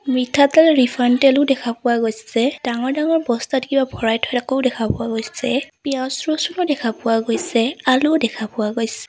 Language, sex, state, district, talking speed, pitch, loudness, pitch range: Assamese, female, Assam, Sonitpur, 165 wpm, 255 Hz, -18 LUFS, 230-275 Hz